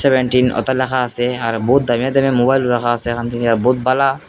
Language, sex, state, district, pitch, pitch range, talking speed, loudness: Bengali, male, Assam, Hailakandi, 125 Hz, 120-130 Hz, 210 wpm, -16 LUFS